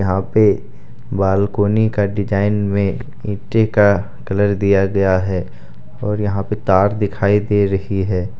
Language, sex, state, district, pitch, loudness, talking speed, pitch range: Hindi, male, Jharkhand, Deoghar, 100 Hz, -17 LUFS, 145 wpm, 95-105 Hz